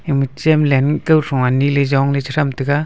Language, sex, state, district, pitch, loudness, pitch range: Wancho, male, Arunachal Pradesh, Longding, 140 Hz, -16 LUFS, 135-150 Hz